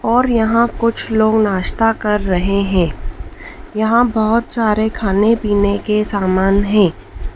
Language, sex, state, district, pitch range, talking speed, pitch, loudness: Hindi, female, Madhya Pradesh, Dhar, 195-225 Hz, 130 wpm, 210 Hz, -15 LUFS